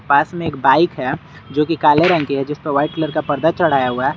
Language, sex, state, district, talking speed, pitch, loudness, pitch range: Hindi, male, Jharkhand, Garhwa, 260 wpm, 150 Hz, -17 LUFS, 140-160 Hz